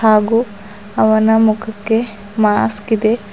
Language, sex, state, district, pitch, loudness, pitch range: Kannada, female, Karnataka, Bidar, 220 Hz, -15 LUFS, 210-220 Hz